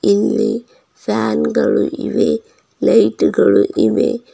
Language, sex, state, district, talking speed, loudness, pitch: Kannada, female, Karnataka, Bidar, 85 wpm, -15 LUFS, 155 Hz